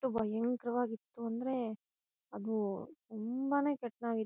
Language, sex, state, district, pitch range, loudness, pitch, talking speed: Kannada, female, Karnataka, Shimoga, 220-250 Hz, -37 LUFS, 235 Hz, 70 wpm